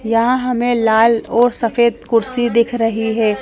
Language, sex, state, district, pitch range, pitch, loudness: Hindi, female, Madhya Pradesh, Bhopal, 225-240 Hz, 230 Hz, -15 LUFS